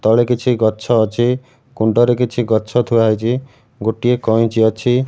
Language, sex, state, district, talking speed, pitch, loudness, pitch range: Odia, male, Odisha, Malkangiri, 140 wpm, 120 Hz, -16 LUFS, 110-125 Hz